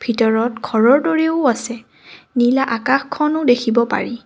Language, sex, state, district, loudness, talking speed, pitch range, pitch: Assamese, female, Assam, Kamrup Metropolitan, -17 LUFS, 115 wpm, 235-275 Hz, 245 Hz